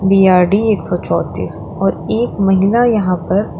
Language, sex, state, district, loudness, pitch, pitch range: Hindi, female, Uttar Pradesh, Lalitpur, -14 LUFS, 195 Hz, 185-215 Hz